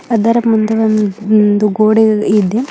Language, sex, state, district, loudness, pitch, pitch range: Kannada, female, Karnataka, Bidar, -12 LUFS, 215 Hz, 210-225 Hz